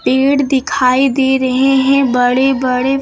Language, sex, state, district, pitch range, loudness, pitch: Hindi, female, Uttar Pradesh, Lucknow, 255-270 Hz, -13 LUFS, 265 Hz